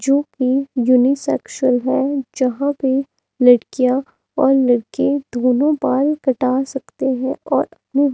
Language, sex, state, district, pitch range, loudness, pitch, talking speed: Hindi, female, Himachal Pradesh, Shimla, 255-275 Hz, -17 LUFS, 265 Hz, 120 wpm